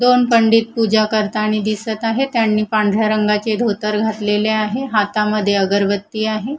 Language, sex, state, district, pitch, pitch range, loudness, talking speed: Marathi, female, Maharashtra, Gondia, 215 Hz, 210-225 Hz, -17 LUFS, 135 wpm